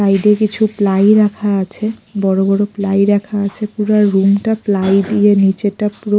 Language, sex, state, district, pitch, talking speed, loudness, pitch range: Bengali, female, Odisha, Khordha, 205 Hz, 165 wpm, -14 LUFS, 200-210 Hz